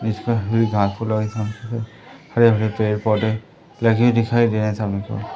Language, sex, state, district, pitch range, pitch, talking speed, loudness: Hindi, male, Madhya Pradesh, Umaria, 105-115 Hz, 110 Hz, 155 wpm, -20 LUFS